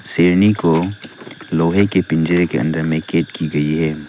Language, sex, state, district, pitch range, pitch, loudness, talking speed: Hindi, male, Arunachal Pradesh, Lower Dibang Valley, 80-90 Hz, 80 Hz, -17 LUFS, 175 wpm